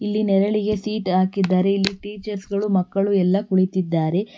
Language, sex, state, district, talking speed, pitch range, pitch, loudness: Kannada, female, Karnataka, Bangalore, 135 wpm, 185-205 Hz, 195 Hz, -21 LUFS